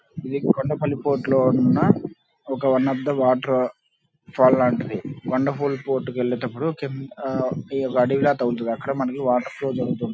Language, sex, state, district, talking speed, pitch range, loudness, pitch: Telugu, male, Andhra Pradesh, Krishna, 155 wpm, 130-140 Hz, -22 LUFS, 135 Hz